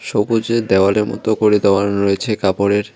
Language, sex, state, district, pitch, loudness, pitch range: Bengali, male, West Bengal, Cooch Behar, 105 Hz, -16 LUFS, 100-110 Hz